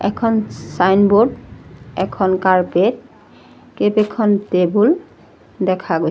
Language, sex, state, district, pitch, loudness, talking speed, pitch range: Assamese, female, Assam, Sonitpur, 200 Hz, -16 LUFS, 80 wpm, 185-215 Hz